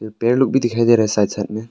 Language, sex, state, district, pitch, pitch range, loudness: Hindi, male, Arunachal Pradesh, Papum Pare, 115 Hz, 105-120 Hz, -17 LUFS